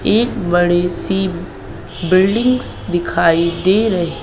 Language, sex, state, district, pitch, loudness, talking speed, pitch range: Hindi, female, Madhya Pradesh, Katni, 175 Hz, -15 LUFS, 100 wpm, 170-190 Hz